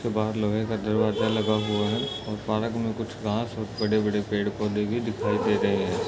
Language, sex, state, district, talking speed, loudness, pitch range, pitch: Hindi, male, Chhattisgarh, Rajnandgaon, 190 wpm, -26 LUFS, 105-110 Hz, 110 Hz